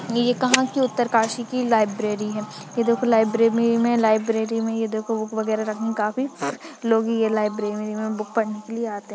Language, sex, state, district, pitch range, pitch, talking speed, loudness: Hindi, female, Uttarakhand, Uttarkashi, 215-235 Hz, 225 Hz, 195 wpm, -22 LUFS